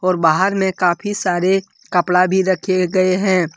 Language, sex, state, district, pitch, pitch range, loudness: Hindi, male, Jharkhand, Deoghar, 185 Hz, 180-190 Hz, -17 LUFS